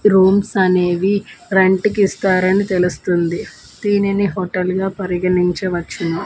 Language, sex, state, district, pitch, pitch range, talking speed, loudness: Telugu, female, Andhra Pradesh, Manyam, 185 Hz, 180-200 Hz, 85 wpm, -17 LUFS